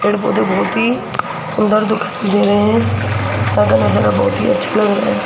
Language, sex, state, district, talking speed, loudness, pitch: Hindi, female, Rajasthan, Jaipur, 195 wpm, -15 LUFS, 195 Hz